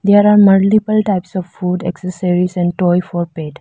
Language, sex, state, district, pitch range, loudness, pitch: English, female, Arunachal Pradesh, Lower Dibang Valley, 175-200 Hz, -14 LUFS, 180 Hz